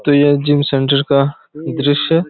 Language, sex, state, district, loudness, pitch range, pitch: Hindi, male, Chhattisgarh, Raigarh, -14 LUFS, 140-145 Hz, 145 Hz